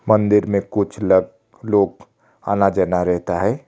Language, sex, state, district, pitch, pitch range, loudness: Hindi, male, Odisha, Khordha, 100 Hz, 95-105 Hz, -18 LUFS